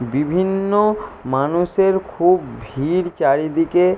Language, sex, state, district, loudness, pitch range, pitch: Bengali, male, West Bengal, Jalpaiguri, -18 LUFS, 140-190 Hz, 175 Hz